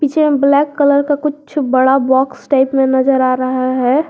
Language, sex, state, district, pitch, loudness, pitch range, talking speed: Hindi, female, Jharkhand, Garhwa, 275 Hz, -13 LUFS, 260-290 Hz, 190 wpm